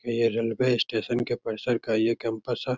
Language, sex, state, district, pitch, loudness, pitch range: Hindi, male, Bihar, Begusarai, 115 Hz, -27 LUFS, 115-120 Hz